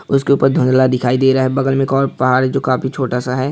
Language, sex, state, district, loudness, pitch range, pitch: Hindi, male, Bihar, Saharsa, -15 LUFS, 130-135 Hz, 130 Hz